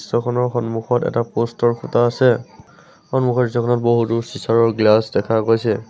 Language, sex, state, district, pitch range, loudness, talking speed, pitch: Assamese, male, Assam, Sonitpur, 115-125 Hz, -18 LUFS, 150 wpm, 120 Hz